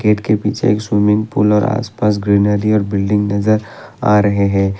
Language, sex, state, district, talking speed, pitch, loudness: Hindi, male, Assam, Kamrup Metropolitan, 185 wpm, 105 Hz, -15 LUFS